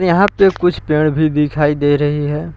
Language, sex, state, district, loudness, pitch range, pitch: Hindi, male, Jharkhand, Palamu, -14 LUFS, 150-175 Hz, 150 Hz